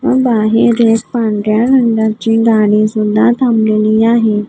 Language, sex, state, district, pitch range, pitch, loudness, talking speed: Marathi, female, Maharashtra, Gondia, 215-235 Hz, 225 Hz, -11 LUFS, 120 wpm